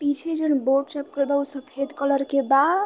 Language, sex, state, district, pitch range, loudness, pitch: Bhojpuri, female, Uttar Pradesh, Varanasi, 275-290 Hz, -22 LUFS, 280 Hz